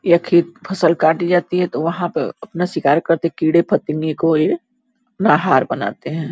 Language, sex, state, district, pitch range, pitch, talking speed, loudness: Hindi, female, Uttar Pradesh, Gorakhpur, 160-180 Hz, 170 Hz, 170 wpm, -17 LUFS